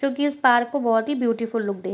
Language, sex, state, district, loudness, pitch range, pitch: Hindi, female, Bihar, Sitamarhi, -22 LUFS, 225-280 Hz, 240 Hz